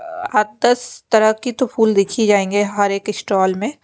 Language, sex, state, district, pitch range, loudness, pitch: Hindi, female, Bihar, Kaimur, 205-245 Hz, -17 LUFS, 215 Hz